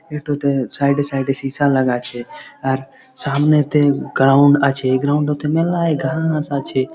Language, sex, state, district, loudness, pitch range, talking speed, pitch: Bengali, male, West Bengal, Malda, -17 LUFS, 135-150 Hz, 145 wpm, 140 Hz